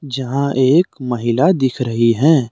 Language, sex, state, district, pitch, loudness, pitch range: Hindi, male, Jharkhand, Deoghar, 130 Hz, -16 LUFS, 125-140 Hz